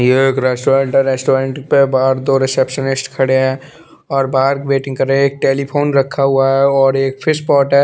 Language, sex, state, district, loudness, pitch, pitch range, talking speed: Hindi, male, Chandigarh, Chandigarh, -14 LUFS, 135 Hz, 135-140 Hz, 200 wpm